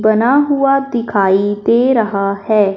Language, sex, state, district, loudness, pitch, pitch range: Hindi, male, Punjab, Fazilka, -14 LUFS, 220 Hz, 200-260 Hz